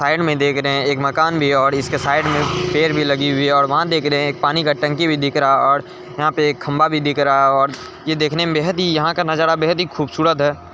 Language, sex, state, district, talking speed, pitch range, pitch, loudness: Hindi, male, Bihar, Gaya, 250 wpm, 140-160 Hz, 150 Hz, -17 LUFS